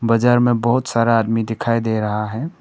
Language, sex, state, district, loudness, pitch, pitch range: Hindi, male, Arunachal Pradesh, Papum Pare, -18 LUFS, 115 Hz, 115-120 Hz